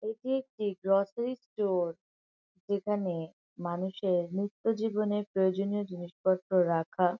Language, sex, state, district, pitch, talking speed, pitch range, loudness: Bengali, female, West Bengal, North 24 Parganas, 190 Hz, 100 wpm, 180-210 Hz, -31 LUFS